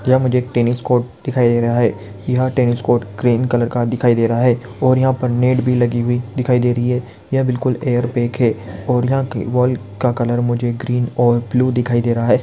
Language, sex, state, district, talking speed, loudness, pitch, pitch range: Hindi, male, Jharkhand, Jamtara, 230 wpm, -17 LUFS, 120 Hz, 120-125 Hz